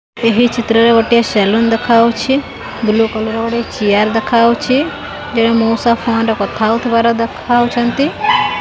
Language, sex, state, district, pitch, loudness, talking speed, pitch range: Odia, female, Odisha, Khordha, 230 Hz, -13 LUFS, 120 wpm, 225-240 Hz